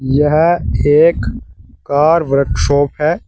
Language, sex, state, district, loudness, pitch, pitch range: Hindi, male, Uttar Pradesh, Saharanpur, -13 LUFS, 150 Hz, 140-165 Hz